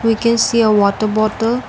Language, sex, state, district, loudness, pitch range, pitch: English, female, Assam, Kamrup Metropolitan, -14 LUFS, 215-230 Hz, 225 Hz